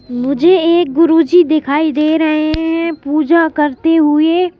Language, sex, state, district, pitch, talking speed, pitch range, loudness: Hindi, male, Madhya Pradesh, Bhopal, 320 Hz, 130 wpm, 300-330 Hz, -12 LUFS